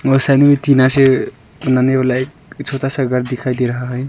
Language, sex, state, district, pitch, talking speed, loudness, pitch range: Hindi, male, Arunachal Pradesh, Lower Dibang Valley, 130 Hz, 235 wpm, -14 LUFS, 125-140 Hz